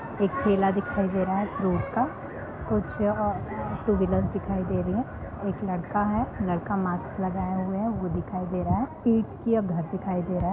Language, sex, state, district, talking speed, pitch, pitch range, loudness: Hindi, female, Bihar, Sitamarhi, 215 wpm, 190 Hz, 185-205 Hz, -27 LUFS